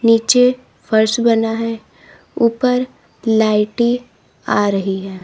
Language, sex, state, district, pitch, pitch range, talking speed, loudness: Hindi, female, Uttar Pradesh, Lalitpur, 230 Hz, 215-240 Hz, 105 wpm, -16 LUFS